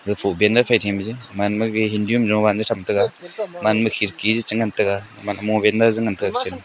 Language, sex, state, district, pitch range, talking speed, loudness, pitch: Wancho, male, Arunachal Pradesh, Longding, 105-115 Hz, 200 wpm, -20 LUFS, 110 Hz